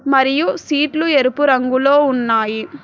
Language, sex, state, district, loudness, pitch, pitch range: Telugu, female, Telangana, Hyderabad, -15 LUFS, 275 Hz, 255-290 Hz